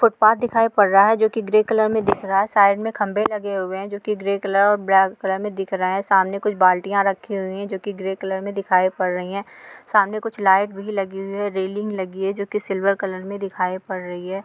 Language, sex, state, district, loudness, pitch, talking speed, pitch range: Hindi, female, Andhra Pradesh, Srikakulam, -20 LUFS, 200 Hz, 265 wpm, 190-210 Hz